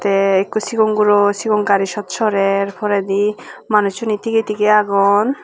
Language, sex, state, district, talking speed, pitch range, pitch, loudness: Chakma, female, Tripura, Unakoti, 145 wpm, 200-215 Hz, 210 Hz, -16 LUFS